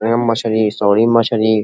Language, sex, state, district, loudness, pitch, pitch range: Bhojpuri, male, Uttar Pradesh, Ghazipur, -15 LUFS, 110 Hz, 110-115 Hz